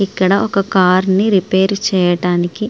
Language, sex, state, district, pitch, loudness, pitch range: Telugu, female, Andhra Pradesh, Srikakulam, 190 Hz, -14 LUFS, 185-195 Hz